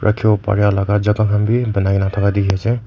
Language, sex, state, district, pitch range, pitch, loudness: Nagamese, male, Nagaland, Kohima, 100-110 Hz, 105 Hz, -16 LUFS